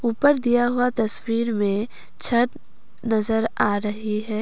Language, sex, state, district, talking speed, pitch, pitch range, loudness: Hindi, female, Assam, Kamrup Metropolitan, 135 wpm, 225 Hz, 215-240 Hz, -20 LUFS